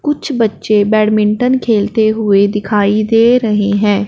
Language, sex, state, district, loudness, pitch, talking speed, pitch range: Hindi, female, Punjab, Fazilka, -12 LUFS, 215 Hz, 130 wpm, 205-225 Hz